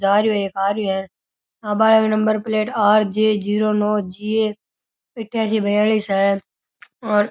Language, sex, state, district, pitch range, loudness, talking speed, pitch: Rajasthani, male, Rajasthan, Nagaur, 205-215 Hz, -19 LUFS, 180 wpm, 210 Hz